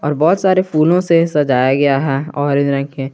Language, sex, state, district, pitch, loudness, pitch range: Hindi, male, Jharkhand, Garhwa, 145 Hz, -14 LUFS, 140-165 Hz